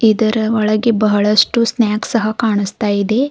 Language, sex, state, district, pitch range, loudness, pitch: Kannada, female, Karnataka, Bidar, 210-230 Hz, -15 LUFS, 220 Hz